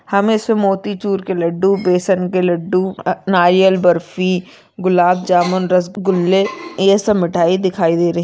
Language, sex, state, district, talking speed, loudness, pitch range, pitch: Hindi, female, Maharashtra, Aurangabad, 155 wpm, -15 LUFS, 180-195 Hz, 185 Hz